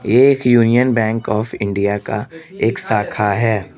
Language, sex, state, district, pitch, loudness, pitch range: Hindi, male, Arunachal Pradesh, Lower Dibang Valley, 115 Hz, -16 LUFS, 105-125 Hz